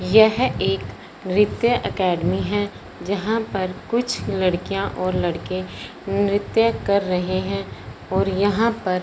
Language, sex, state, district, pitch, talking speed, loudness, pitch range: Hindi, female, Punjab, Fazilka, 195 Hz, 120 wpm, -21 LUFS, 180-210 Hz